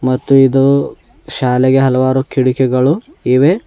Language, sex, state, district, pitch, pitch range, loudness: Kannada, male, Karnataka, Bidar, 135 Hz, 130-140 Hz, -12 LUFS